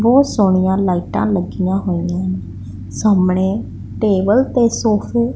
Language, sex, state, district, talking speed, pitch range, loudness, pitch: Punjabi, female, Punjab, Pathankot, 110 wpm, 175-215 Hz, -16 LUFS, 190 Hz